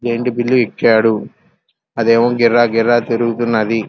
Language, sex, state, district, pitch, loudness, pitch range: Telugu, male, Andhra Pradesh, Krishna, 115 Hz, -14 LUFS, 115-120 Hz